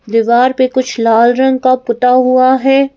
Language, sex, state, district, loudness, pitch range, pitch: Hindi, female, Madhya Pradesh, Bhopal, -11 LUFS, 235-260 Hz, 255 Hz